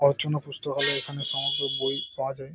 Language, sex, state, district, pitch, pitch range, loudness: Bengali, male, West Bengal, Jhargram, 140 Hz, 135-145 Hz, -27 LUFS